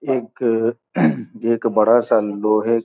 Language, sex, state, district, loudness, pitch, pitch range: Hindi, male, Bihar, Gopalganj, -18 LUFS, 115 Hz, 110-120 Hz